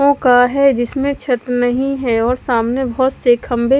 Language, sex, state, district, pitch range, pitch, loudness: Hindi, female, Bihar, West Champaran, 245-275 Hz, 250 Hz, -15 LUFS